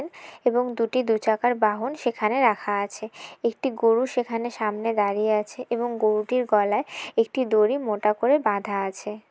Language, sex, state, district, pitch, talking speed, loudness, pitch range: Bengali, female, West Bengal, Jalpaiguri, 225 Hz, 150 wpm, -24 LUFS, 210-245 Hz